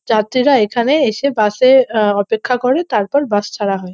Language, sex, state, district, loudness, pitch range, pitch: Bengali, female, West Bengal, North 24 Parganas, -14 LUFS, 210-260 Hz, 225 Hz